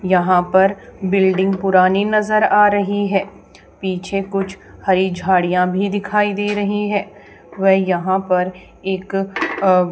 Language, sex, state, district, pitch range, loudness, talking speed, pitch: Hindi, female, Haryana, Charkhi Dadri, 185-200 Hz, -17 LUFS, 140 wpm, 195 Hz